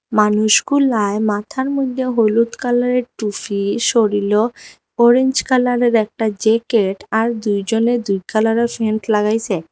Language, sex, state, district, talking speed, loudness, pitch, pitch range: Bengali, female, Assam, Hailakandi, 105 wpm, -17 LUFS, 225 Hz, 210-245 Hz